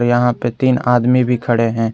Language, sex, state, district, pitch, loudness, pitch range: Hindi, male, Jharkhand, Garhwa, 120 Hz, -15 LUFS, 120-125 Hz